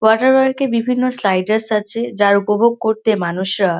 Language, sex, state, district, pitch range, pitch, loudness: Bengali, female, West Bengal, North 24 Parganas, 200-240 Hz, 220 Hz, -16 LUFS